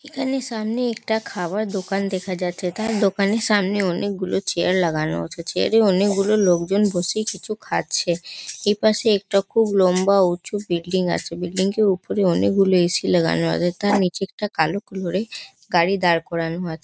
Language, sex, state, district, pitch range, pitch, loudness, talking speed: Bengali, female, West Bengal, North 24 Parganas, 175-210 Hz, 195 Hz, -21 LUFS, 170 wpm